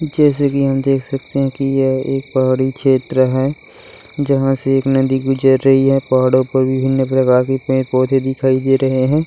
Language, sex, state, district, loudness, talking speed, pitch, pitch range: Hindi, female, Uttarakhand, Tehri Garhwal, -15 LUFS, 180 wpm, 135 Hz, 130-135 Hz